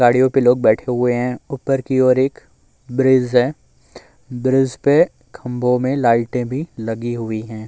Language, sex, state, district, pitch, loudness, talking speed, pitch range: Hindi, male, Uttar Pradesh, Muzaffarnagar, 125 Hz, -17 LUFS, 165 wpm, 120-130 Hz